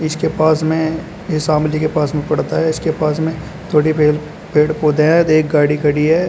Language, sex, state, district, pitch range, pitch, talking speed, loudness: Hindi, male, Uttar Pradesh, Shamli, 150-160 Hz, 155 Hz, 220 wpm, -15 LUFS